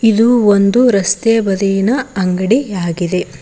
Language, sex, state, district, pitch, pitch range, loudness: Kannada, female, Karnataka, Koppal, 205 Hz, 190-230 Hz, -13 LUFS